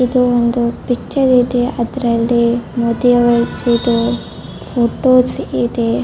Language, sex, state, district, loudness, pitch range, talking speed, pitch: Kannada, female, Karnataka, Bellary, -15 LUFS, 235-250 Hz, 100 wpm, 240 Hz